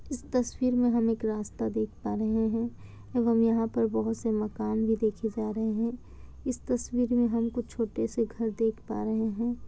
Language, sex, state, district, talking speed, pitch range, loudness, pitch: Hindi, female, Bihar, Kishanganj, 200 wpm, 220-235 Hz, -29 LUFS, 225 Hz